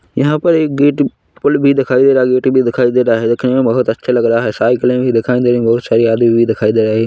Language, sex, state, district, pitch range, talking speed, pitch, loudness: Hindi, male, Chhattisgarh, Korba, 115-135 Hz, 280 wpm, 125 Hz, -12 LUFS